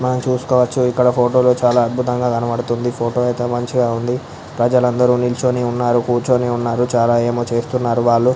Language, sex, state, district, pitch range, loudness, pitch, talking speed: Telugu, male, Andhra Pradesh, Visakhapatnam, 120-125 Hz, -17 LUFS, 120 Hz, 165 wpm